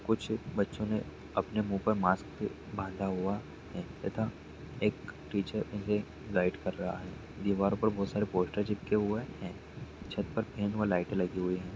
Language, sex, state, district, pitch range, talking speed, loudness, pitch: Hindi, male, Chhattisgarh, Raigarh, 90-105 Hz, 175 wpm, -34 LUFS, 100 Hz